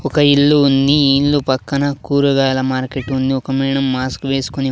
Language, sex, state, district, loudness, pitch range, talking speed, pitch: Telugu, male, Andhra Pradesh, Sri Satya Sai, -15 LUFS, 135-140 Hz, 165 wpm, 135 Hz